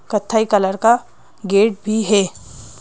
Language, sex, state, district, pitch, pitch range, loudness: Hindi, female, Madhya Pradesh, Bhopal, 205 Hz, 190-220 Hz, -17 LUFS